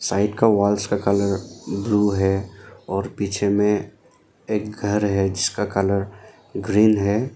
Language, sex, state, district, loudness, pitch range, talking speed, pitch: Hindi, male, Arunachal Pradesh, Lower Dibang Valley, -21 LUFS, 100-105 Hz, 140 wpm, 100 Hz